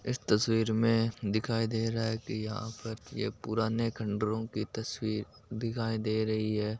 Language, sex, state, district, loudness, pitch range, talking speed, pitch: Marwari, male, Rajasthan, Nagaur, -32 LUFS, 110-115 Hz, 175 wpm, 110 Hz